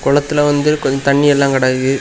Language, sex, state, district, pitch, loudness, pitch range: Tamil, male, Tamil Nadu, Kanyakumari, 140 Hz, -14 LUFS, 135-145 Hz